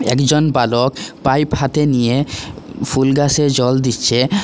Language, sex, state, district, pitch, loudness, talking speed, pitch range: Bengali, male, Assam, Hailakandi, 135 Hz, -15 LUFS, 120 wpm, 125-145 Hz